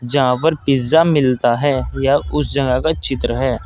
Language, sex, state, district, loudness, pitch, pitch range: Hindi, male, Uttar Pradesh, Saharanpur, -16 LUFS, 135 Hz, 125-145 Hz